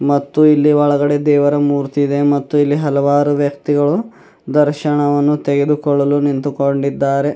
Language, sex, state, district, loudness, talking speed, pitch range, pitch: Kannada, male, Karnataka, Bidar, -15 LUFS, 105 wpm, 140-145 Hz, 145 Hz